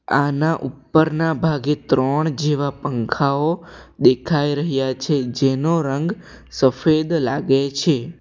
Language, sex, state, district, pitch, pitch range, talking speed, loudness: Gujarati, male, Gujarat, Valsad, 145 Hz, 135-160 Hz, 100 wpm, -19 LUFS